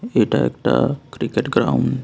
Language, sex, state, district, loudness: Bengali, male, Tripura, West Tripura, -19 LUFS